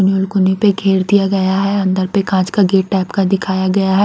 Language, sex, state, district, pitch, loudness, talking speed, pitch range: Hindi, female, Haryana, Rohtak, 195 Hz, -14 LUFS, 250 wpm, 190-200 Hz